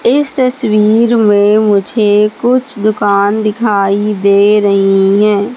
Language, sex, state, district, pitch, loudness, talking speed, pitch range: Hindi, female, Madhya Pradesh, Katni, 210 Hz, -10 LUFS, 110 wpm, 205-230 Hz